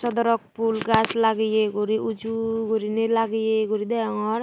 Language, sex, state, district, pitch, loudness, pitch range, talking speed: Chakma, female, Tripura, Unakoti, 220 Hz, -23 LUFS, 220-225 Hz, 135 wpm